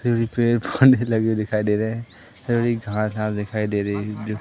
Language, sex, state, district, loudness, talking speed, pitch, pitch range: Hindi, male, Madhya Pradesh, Katni, -21 LUFS, 205 wpm, 110 Hz, 105-120 Hz